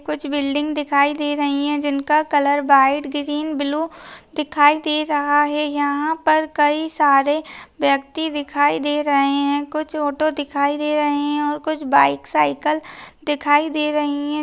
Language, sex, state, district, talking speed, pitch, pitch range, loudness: Hindi, female, Maharashtra, Aurangabad, 160 wpm, 295 Hz, 285-300 Hz, -19 LUFS